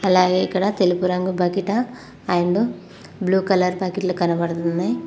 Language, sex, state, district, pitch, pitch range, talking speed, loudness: Telugu, female, Telangana, Mahabubabad, 185 Hz, 175-190 Hz, 120 wpm, -20 LUFS